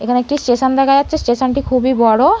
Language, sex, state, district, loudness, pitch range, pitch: Bengali, female, West Bengal, North 24 Parganas, -14 LUFS, 245-280 Hz, 260 Hz